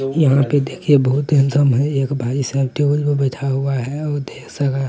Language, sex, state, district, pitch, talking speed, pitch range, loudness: Hindi, male, Bihar, Lakhisarai, 140 Hz, 220 wpm, 135-145 Hz, -17 LUFS